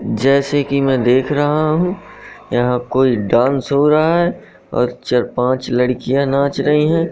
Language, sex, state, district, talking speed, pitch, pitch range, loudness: Hindi, male, Madhya Pradesh, Katni, 160 wpm, 140 Hz, 125-150 Hz, -16 LUFS